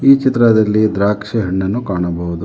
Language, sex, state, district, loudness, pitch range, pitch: Kannada, male, Karnataka, Bangalore, -15 LUFS, 95-115 Hz, 105 Hz